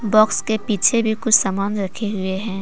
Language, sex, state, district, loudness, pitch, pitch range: Hindi, female, Jharkhand, Deoghar, -18 LUFS, 215 Hz, 195-220 Hz